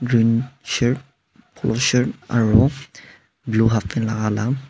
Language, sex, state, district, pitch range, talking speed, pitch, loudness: Nagamese, male, Nagaland, Dimapur, 110-130 Hz, 115 wpm, 120 Hz, -20 LUFS